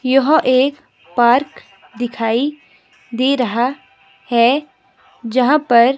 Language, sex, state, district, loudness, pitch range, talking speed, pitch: Hindi, female, Himachal Pradesh, Shimla, -16 LUFS, 240-270 Hz, 90 wpm, 255 Hz